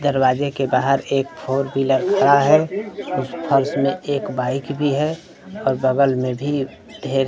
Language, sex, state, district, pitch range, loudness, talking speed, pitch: Hindi, male, Bihar, Kaimur, 135-145 Hz, -19 LUFS, 165 wpm, 140 Hz